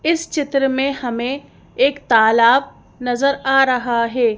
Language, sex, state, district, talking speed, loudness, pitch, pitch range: Hindi, female, Madhya Pradesh, Bhopal, 135 wpm, -17 LUFS, 265 Hz, 240-275 Hz